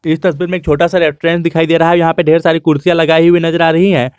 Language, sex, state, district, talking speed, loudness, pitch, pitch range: Hindi, male, Jharkhand, Garhwa, 330 wpm, -11 LUFS, 165 Hz, 160-175 Hz